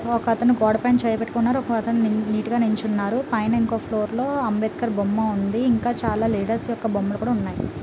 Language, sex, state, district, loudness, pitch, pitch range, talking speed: Telugu, female, Telangana, Nalgonda, -22 LUFS, 225 Hz, 215-235 Hz, 170 wpm